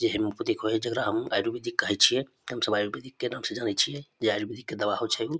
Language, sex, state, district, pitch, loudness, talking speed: Maithili, male, Bihar, Samastipur, 150 Hz, -28 LUFS, 245 wpm